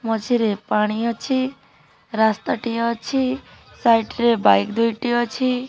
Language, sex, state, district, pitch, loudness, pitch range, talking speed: Odia, female, Odisha, Nuapada, 235 Hz, -20 LUFS, 220-250 Hz, 105 wpm